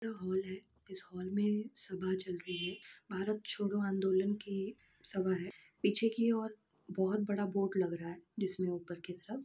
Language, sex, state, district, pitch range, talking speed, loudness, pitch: Hindi, female, Uttar Pradesh, Jalaun, 185-210 Hz, 190 wpm, -37 LUFS, 190 Hz